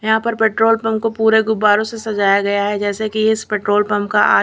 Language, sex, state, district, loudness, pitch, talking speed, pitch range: Hindi, female, Chhattisgarh, Raipur, -16 LUFS, 215 Hz, 245 wpm, 205-220 Hz